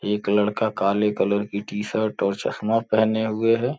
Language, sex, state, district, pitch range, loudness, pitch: Hindi, male, Uttar Pradesh, Gorakhpur, 100-110 Hz, -23 LUFS, 105 Hz